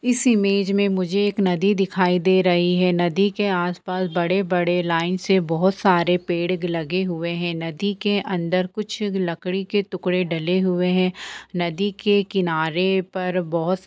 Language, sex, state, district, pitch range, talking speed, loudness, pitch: Hindi, female, Bihar, Purnia, 175-200 Hz, 170 wpm, -21 LUFS, 185 Hz